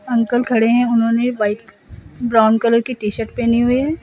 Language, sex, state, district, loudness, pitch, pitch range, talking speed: Hindi, female, Assam, Sonitpur, -16 LUFS, 235 Hz, 225-245 Hz, 195 wpm